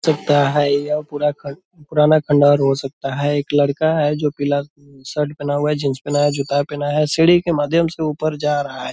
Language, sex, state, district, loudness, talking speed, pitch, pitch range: Hindi, male, Bihar, Purnia, -18 LUFS, 230 wpm, 145 Hz, 145-150 Hz